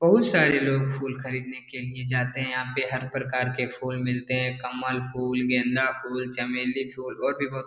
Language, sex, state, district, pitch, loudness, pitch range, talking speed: Hindi, male, Bihar, Darbhanga, 130 Hz, -26 LUFS, 125-130 Hz, 210 wpm